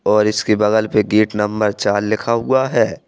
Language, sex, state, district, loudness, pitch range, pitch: Hindi, male, Uttar Pradesh, Jalaun, -16 LUFS, 105-110 Hz, 105 Hz